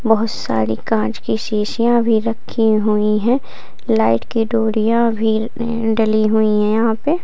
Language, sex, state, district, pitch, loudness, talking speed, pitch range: Hindi, female, Uttar Pradesh, Lalitpur, 220 Hz, -17 LUFS, 155 wpm, 215-230 Hz